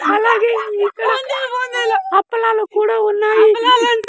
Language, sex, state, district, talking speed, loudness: Telugu, male, Andhra Pradesh, Sri Satya Sai, 90 wpm, -15 LUFS